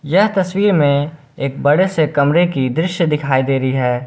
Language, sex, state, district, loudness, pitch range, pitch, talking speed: Hindi, male, Jharkhand, Garhwa, -16 LUFS, 135-175 Hz, 145 Hz, 190 wpm